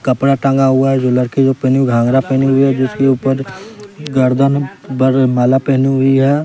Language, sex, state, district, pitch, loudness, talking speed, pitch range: Hindi, male, Bihar, West Champaran, 135 Hz, -13 LUFS, 195 wpm, 130-135 Hz